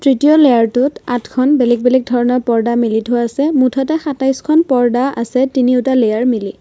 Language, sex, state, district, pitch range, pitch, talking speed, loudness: Assamese, female, Assam, Kamrup Metropolitan, 240-270 Hz, 250 Hz, 155 wpm, -14 LUFS